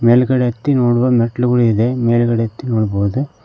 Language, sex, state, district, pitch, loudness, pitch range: Kannada, male, Karnataka, Koppal, 120 Hz, -15 LUFS, 115-125 Hz